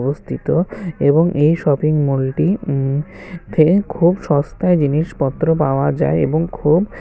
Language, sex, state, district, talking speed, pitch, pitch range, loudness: Bengali, male, Tripura, West Tripura, 95 wpm, 155 Hz, 145-170 Hz, -17 LUFS